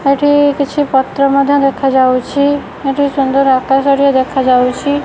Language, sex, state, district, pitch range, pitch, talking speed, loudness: Odia, female, Odisha, Khordha, 265-285 Hz, 275 Hz, 140 wpm, -12 LUFS